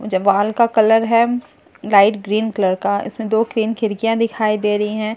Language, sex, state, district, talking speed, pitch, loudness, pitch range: Hindi, female, Bihar, Katihar, 230 wpm, 220 Hz, -17 LUFS, 205-225 Hz